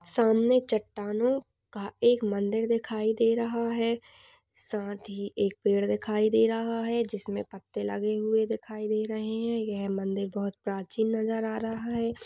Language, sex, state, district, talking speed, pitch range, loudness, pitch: Hindi, female, Uttar Pradesh, Budaun, 160 wpm, 205-230 Hz, -29 LUFS, 220 Hz